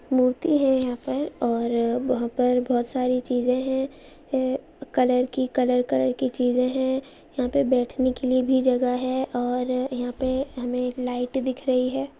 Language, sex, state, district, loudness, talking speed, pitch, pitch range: Hindi, female, Andhra Pradesh, Visakhapatnam, -24 LUFS, 180 wpm, 255 Hz, 250-260 Hz